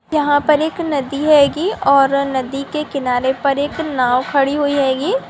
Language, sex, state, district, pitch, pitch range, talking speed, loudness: Hindi, female, Bihar, Sitamarhi, 280 Hz, 275-300 Hz, 170 wpm, -16 LUFS